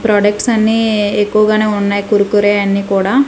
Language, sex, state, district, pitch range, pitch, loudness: Telugu, female, Andhra Pradesh, Manyam, 205-215 Hz, 205 Hz, -13 LUFS